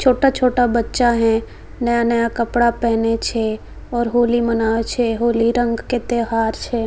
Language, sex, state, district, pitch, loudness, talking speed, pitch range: Maithili, female, Bihar, Samastipur, 235 Hz, -18 LUFS, 140 wpm, 230-240 Hz